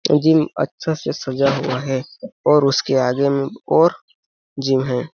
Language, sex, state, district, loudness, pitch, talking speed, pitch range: Hindi, male, Chhattisgarh, Balrampur, -18 LUFS, 140 Hz, 150 wpm, 130-155 Hz